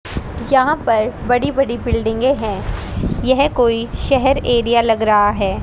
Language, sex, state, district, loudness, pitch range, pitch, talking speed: Hindi, female, Haryana, Rohtak, -16 LUFS, 225-270 Hz, 240 Hz, 140 wpm